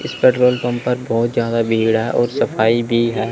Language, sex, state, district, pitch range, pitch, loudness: Hindi, male, Chandigarh, Chandigarh, 115-125 Hz, 120 Hz, -17 LUFS